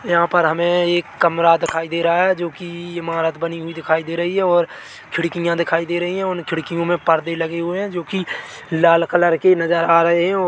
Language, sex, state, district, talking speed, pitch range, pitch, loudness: Hindi, male, Chhattisgarh, Bilaspur, 205 wpm, 165-175 Hz, 170 Hz, -18 LUFS